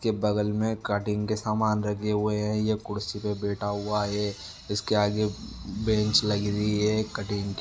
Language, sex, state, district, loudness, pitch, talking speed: Marwari, male, Rajasthan, Nagaur, -27 LUFS, 105 Hz, 180 wpm